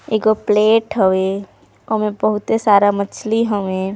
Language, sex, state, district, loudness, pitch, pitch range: Chhattisgarhi, female, Chhattisgarh, Sarguja, -16 LUFS, 210 Hz, 200-220 Hz